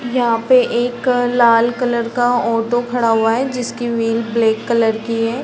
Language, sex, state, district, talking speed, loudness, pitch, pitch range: Hindi, female, Bihar, Sitamarhi, 175 wpm, -16 LUFS, 235 Hz, 230-245 Hz